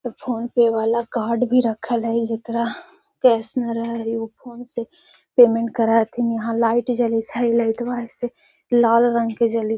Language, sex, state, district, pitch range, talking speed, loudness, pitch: Magahi, female, Bihar, Gaya, 230-240 Hz, 180 wpm, -20 LUFS, 235 Hz